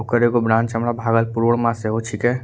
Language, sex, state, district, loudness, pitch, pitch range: Angika, male, Bihar, Bhagalpur, -19 LUFS, 115 Hz, 115-120 Hz